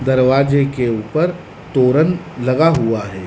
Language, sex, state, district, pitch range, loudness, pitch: Hindi, male, Madhya Pradesh, Dhar, 125-160 Hz, -16 LUFS, 135 Hz